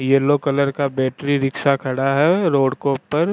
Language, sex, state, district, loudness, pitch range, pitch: Rajasthani, male, Rajasthan, Churu, -19 LUFS, 135-145 Hz, 140 Hz